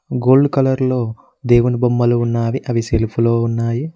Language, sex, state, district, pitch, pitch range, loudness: Telugu, male, Telangana, Mahabubabad, 120 Hz, 115-130 Hz, -16 LUFS